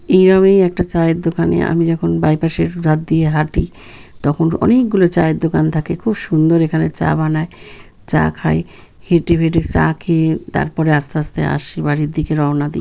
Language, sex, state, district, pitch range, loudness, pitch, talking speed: Bengali, male, West Bengal, Kolkata, 155-170 Hz, -15 LUFS, 160 Hz, 170 wpm